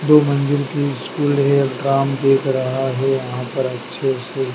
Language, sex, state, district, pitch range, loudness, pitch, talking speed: Hindi, male, Madhya Pradesh, Dhar, 130-140 Hz, -18 LUFS, 135 Hz, 160 wpm